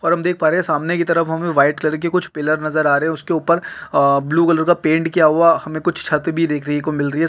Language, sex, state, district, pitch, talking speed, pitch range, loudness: Hindi, male, Chhattisgarh, Kabirdham, 160 Hz, 315 wpm, 155-170 Hz, -17 LUFS